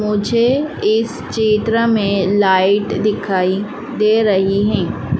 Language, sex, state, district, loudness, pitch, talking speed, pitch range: Hindi, female, Madhya Pradesh, Dhar, -16 LUFS, 210 Hz, 105 wpm, 200-225 Hz